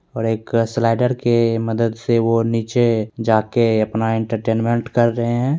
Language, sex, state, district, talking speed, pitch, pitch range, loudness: Hindi, male, Bihar, Begusarai, 160 wpm, 115 Hz, 115-120 Hz, -18 LUFS